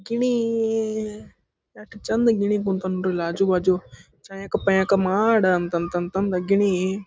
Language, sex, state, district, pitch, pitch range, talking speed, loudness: Kannada, male, Karnataka, Dharwad, 195 Hz, 185-215 Hz, 110 wpm, -22 LUFS